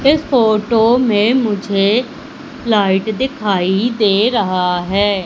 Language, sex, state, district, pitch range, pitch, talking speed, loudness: Hindi, female, Madhya Pradesh, Umaria, 200-250 Hz, 215 Hz, 105 wpm, -14 LUFS